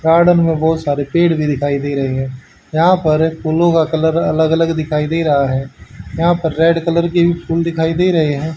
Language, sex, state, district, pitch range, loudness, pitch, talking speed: Hindi, male, Haryana, Charkhi Dadri, 150-170 Hz, -15 LUFS, 160 Hz, 225 wpm